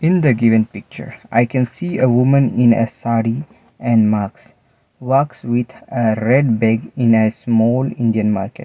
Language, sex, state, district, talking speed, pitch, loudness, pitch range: English, male, Mizoram, Aizawl, 160 wpm, 115 Hz, -16 LUFS, 110-130 Hz